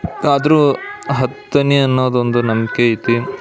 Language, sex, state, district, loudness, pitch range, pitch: Kannada, male, Karnataka, Belgaum, -15 LUFS, 120-145 Hz, 130 Hz